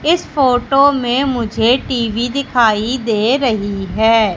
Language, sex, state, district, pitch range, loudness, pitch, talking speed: Hindi, female, Madhya Pradesh, Katni, 220-265 Hz, -15 LUFS, 240 Hz, 125 wpm